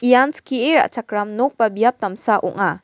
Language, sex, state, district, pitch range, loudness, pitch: Garo, female, Meghalaya, West Garo Hills, 205-250 Hz, -18 LUFS, 225 Hz